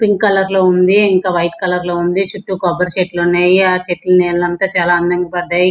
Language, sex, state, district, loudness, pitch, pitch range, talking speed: Telugu, male, Andhra Pradesh, Srikakulam, -13 LUFS, 180 Hz, 175-190 Hz, 220 wpm